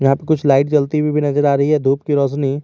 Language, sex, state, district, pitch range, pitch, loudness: Hindi, male, Jharkhand, Garhwa, 140-150 Hz, 145 Hz, -16 LUFS